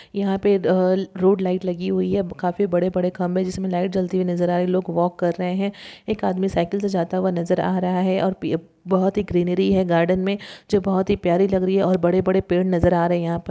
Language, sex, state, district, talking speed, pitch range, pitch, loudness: Hindi, female, Andhra Pradesh, Guntur, 260 wpm, 175-190 Hz, 185 Hz, -21 LUFS